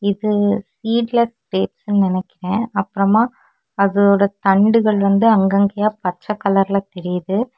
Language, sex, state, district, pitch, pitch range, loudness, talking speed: Tamil, female, Tamil Nadu, Kanyakumari, 200 Hz, 195-220 Hz, -17 LUFS, 105 wpm